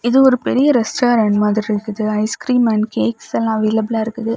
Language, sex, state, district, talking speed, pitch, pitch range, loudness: Tamil, female, Tamil Nadu, Kanyakumari, 150 wpm, 220 Hz, 215-240 Hz, -16 LUFS